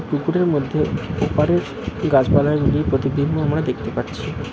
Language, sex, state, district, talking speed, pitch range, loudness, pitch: Bengali, male, West Bengal, Cooch Behar, 105 wpm, 140-160 Hz, -20 LUFS, 150 Hz